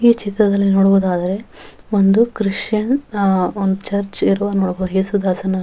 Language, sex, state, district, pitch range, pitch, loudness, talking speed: Kannada, female, Karnataka, Raichur, 190-205 Hz, 195 Hz, -17 LUFS, 130 wpm